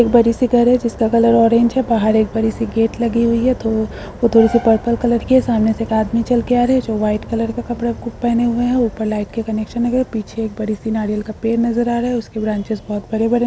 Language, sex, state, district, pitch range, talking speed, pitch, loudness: Hindi, female, Uttar Pradesh, Ghazipur, 220-240 Hz, 275 wpm, 230 Hz, -17 LUFS